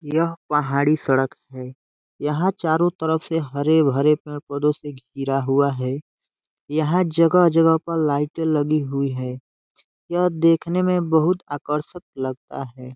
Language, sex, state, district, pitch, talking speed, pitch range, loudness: Hindi, male, Uttar Pradesh, Deoria, 150 Hz, 140 wpm, 140-165 Hz, -21 LUFS